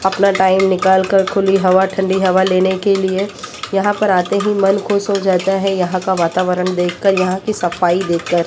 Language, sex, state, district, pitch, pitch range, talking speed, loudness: Hindi, female, Maharashtra, Mumbai Suburban, 190 Hz, 185-195 Hz, 200 wpm, -15 LUFS